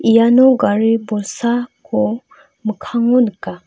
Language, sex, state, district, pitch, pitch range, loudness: Garo, female, Meghalaya, North Garo Hills, 230 Hz, 215-245 Hz, -15 LUFS